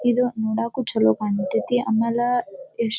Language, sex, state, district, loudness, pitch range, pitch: Kannada, female, Karnataka, Dharwad, -22 LUFS, 220-245 Hz, 230 Hz